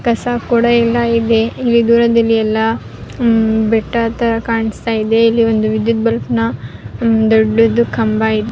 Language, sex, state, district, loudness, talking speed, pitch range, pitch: Kannada, female, Karnataka, Raichur, -14 LUFS, 135 wpm, 220-235 Hz, 225 Hz